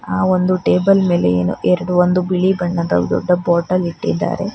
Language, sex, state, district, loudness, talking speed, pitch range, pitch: Kannada, female, Karnataka, Bangalore, -16 LUFS, 145 wpm, 170-185 Hz, 180 Hz